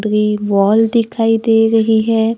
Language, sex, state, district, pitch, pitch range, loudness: Hindi, female, Maharashtra, Gondia, 225 Hz, 210-225 Hz, -13 LUFS